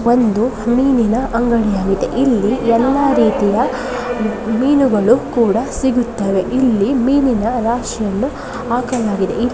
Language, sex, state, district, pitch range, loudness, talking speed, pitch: Kannada, female, Karnataka, Belgaum, 220-255 Hz, -15 LUFS, 80 wpm, 235 Hz